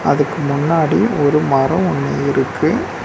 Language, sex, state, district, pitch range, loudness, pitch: Tamil, male, Tamil Nadu, Nilgiris, 140-165 Hz, -16 LUFS, 150 Hz